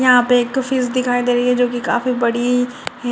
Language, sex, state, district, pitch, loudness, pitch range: Hindi, female, Bihar, Jamui, 245 Hz, -17 LUFS, 245-250 Hz